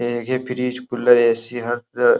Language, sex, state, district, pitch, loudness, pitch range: Hindi, male, Uttar Pradesh, Hamirpur, 120 Hz, -19 LUFS, 120-125 Hz